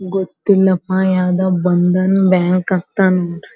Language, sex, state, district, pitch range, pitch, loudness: Kannada, female, Karnataka, Belgaum, 180-190 Hz, 185 Hz, -15 LUFS